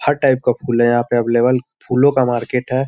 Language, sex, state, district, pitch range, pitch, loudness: Hindi, male, Bihar, Sitamarhi, 120-130 Hz, 125 Hz, -16 LUFS